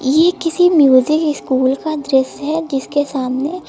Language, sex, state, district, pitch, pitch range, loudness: Hindi, female, Uttar Pradesh, Lucknow, 290 Hz, 265-315 Hz, -15 LUFS